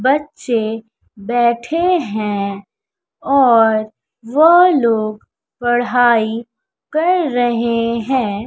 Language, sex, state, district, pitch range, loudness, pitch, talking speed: Hindi, female, Bihar, West Champaran, 220-270 Hz, -15 LUFS, 235 Hz, 70 wpm